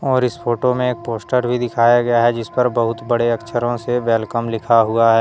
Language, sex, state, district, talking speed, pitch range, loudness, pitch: Hindi, male, Jharkhand, Deoghar, 230 wpm, 115-125 Hz, -17 LUFS, 120 Hz